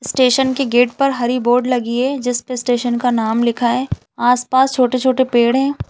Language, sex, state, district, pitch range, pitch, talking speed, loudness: Hindi, female, Chhattisgarh, Balrampur, 240-260 Hz, 250 Hz, 215 wpm, -16 LUFS